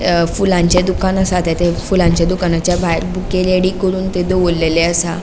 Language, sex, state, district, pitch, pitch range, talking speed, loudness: Konkani, female, Goa, North and South Goa, 180 Hz, 170-185 Hz, 160 wpm, -15 LUFS